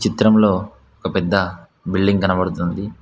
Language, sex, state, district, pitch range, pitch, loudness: Telugu, male, Telangana, Mahabubabad, 90-100 Hz, 95 Hz, -18 LUFS